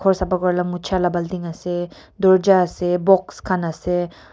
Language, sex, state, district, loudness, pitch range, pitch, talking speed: Nagamese, female, Nagaland, Kohima, -20 LUFS, 175-185 Hz, 180 Hz, 165 wpm